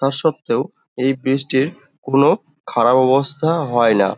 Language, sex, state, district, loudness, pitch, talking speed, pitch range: Bengali, male, West Bengal, Dakshin Dinajpur, -17 LUFS, 135 Hz, 130 wpm, 130-145 Hz